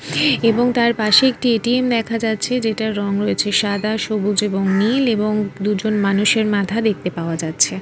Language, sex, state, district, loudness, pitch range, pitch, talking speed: Bengali, female, West Bengal, Kolkata, -18 LUFS, 200-230 Hz, 215 Hz, 160 wpm